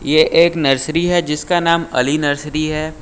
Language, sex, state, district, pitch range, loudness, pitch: Hindi, male, Uttar Pradesh, Lucknow, 150-170 Hz, -16 LUFS, 155 Hz